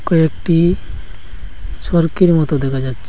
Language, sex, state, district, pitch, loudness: Bengali, male, Assam, Hailakandi, 135 Hz, -15 LUFS